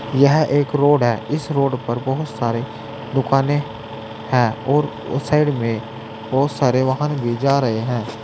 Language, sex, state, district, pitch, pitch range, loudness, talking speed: Hindi, male, Uttar Pradesh, Saharanpur, 130 Hz, 110-145 Hz, -19 LUFS, 160 wpm